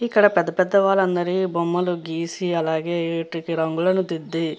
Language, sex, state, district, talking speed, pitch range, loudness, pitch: Telugu, female, Andhra Pradesh, Guntur, 130 wpm, 165-185 Hz, -21 LUFS, 170 Hz